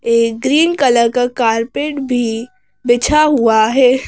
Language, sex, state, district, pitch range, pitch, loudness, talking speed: Hindi, female, Madhya Pradesh, Bhopal, 230-275 Hz, 245 Hz, -13 LUFS, 130 wpm